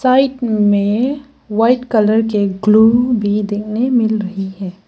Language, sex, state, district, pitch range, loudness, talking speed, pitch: Hindi, female, Arunachal Pradesh, Lower Dibang Valley, 205-240 Hz, -15 LUFS, 135 wpm, 220 Hz